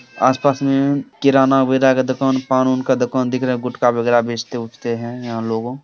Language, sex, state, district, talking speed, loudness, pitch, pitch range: Hindi, male, Bihar, Samastipur, 215 wpm, -17 LUFS, 130 Hz, 120-135 Hz